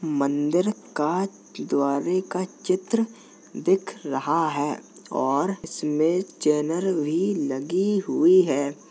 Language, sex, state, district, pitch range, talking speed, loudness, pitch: Hindi, male, Uttar Pradesh, Jalaun, 150-200 Hz, 100 wpm, -24 LUFS, 180 Hz